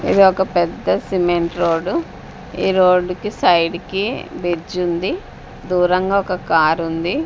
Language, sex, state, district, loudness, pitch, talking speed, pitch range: Telugu, female, Andhra Pradesh, Sri Satya Sai, -18 LUFS, 180 Hz, 125 wpm, 175-190 Hz